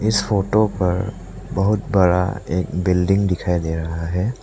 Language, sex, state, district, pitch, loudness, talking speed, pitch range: Hindi, male, Arunachal Pradesh, Lower Dibang Valley, 95 Hz, -20 LUFS, 150 wpm, 90-100 Hz